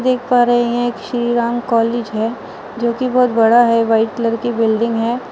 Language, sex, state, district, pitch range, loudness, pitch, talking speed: Hindi, female, Uttar Pradesh, Muzaffarnagar, 230-240 Hz, -16 LUFS, 235 Hz, 205 wpm